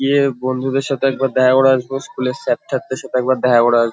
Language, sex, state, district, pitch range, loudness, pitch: Bengali, male, West Bengal, Kolkata, 125-135 Hz, -16 LUFS, 130 Hz